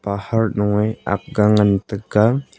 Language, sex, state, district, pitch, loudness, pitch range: Wancho, male, Arunachal Pradesh, Longding, 105 Hz, -18 LUFS, 105-110 Hz